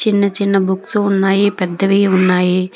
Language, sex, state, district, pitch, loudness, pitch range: Telugu, female, Telangana, Hyderabad, 195 Hz, -14 LUFS, 185-200 Hz